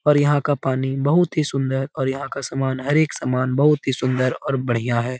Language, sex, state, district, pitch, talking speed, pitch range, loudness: Hindi, male, Bihar, Lakhisarai, 135 Hz, 230 wpm, 130-145 Hz, -21 LUFS